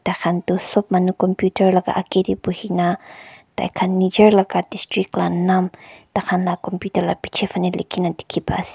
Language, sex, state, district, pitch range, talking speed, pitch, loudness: Nagamese, male, Nagaland, Kohima, 180-195 Hz, 185 wpm, 185 Hz, -19 LUFS